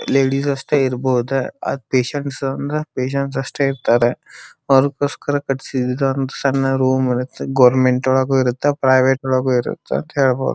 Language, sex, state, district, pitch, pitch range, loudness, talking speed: Kannada, male, Karnataka, Dharwad, 135 Hz, 130-140 Hz, -18 LUFS, 110 wpm